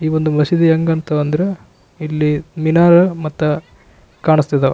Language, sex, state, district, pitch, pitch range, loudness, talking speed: Kannada, male, Karnataka, Raichur, 155 Hz, 150-165 Hz, -15 LUFS, 125 wpm